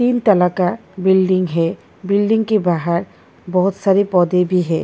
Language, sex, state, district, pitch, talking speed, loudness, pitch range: Hindi, female, Delhi, New Delhi, 185 Hz, 160 wpm, -16 LUFS, 180-200 Hz